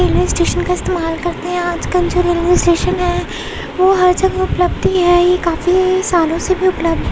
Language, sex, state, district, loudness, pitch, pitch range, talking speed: Hindi, female, Uttar Pradesh, Muzaffarnagar, -15 LUFS, 360 Hz, 345-370 Hz, 195 wpm